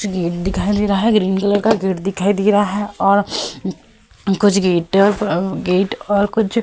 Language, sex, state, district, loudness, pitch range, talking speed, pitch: Hindi, female, Uttar Pradesh, Hamirpur, -17 LUFS, 190-205 Hz, 180 wpm, 200 Hz